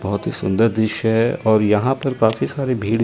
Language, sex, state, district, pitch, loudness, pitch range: Hindi, male, Chandigarh, Chandigarh, 110 Hz, -18 LUFS, 110-120 Hz